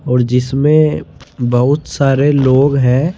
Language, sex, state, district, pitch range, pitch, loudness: Hindi, male, Chandigarh, Chandigarh, 125-145 Hz, 135 Hz, -13 LUFS